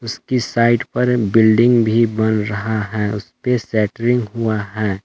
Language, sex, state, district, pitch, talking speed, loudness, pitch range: Hindi, male, Jharkhand, Palamu, 110 Hz, 155 wpm, -17 LUFS, 105-120 Hz